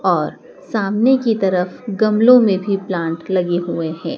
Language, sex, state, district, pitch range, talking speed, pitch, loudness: Hindi, female, Madhya Pradesh, Dhar, 175-220 Hz, 160 wpm, 195 Hz, -17 LUFS